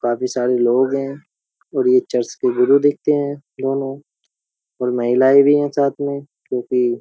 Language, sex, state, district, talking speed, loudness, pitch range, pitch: Hindi, male, Uttar Pradesh, Jyotiba Phule Nagar, 170 wpm, -18 LUFS, 125-145 Hz, 140 Hz